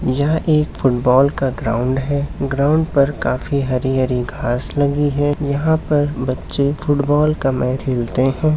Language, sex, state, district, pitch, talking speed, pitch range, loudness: Hindi, male, Uttar Pradesh, Hamirpur, 140 Hz, 145 wpm, 130-145 Hz, -18 LUFS